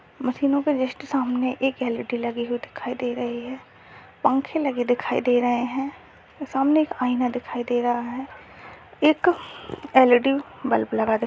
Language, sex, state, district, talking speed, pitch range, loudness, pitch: Hindi, female, Uttar Pradesh, Deoria, 170 wpm, 245-280 Hz, -23 LUFS, 255 Hz